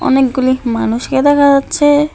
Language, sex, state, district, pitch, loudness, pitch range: Bengali, male, West Bengal, Alipurduar, 270 Hz, -12 LUFS, 255-285 Hz